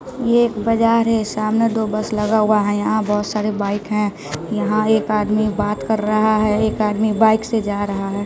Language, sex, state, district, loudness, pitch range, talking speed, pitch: Hindi, male, Bihar, West Champaran, -18 LUFS, 210-220 Hz, 210 wpm, 215 Hz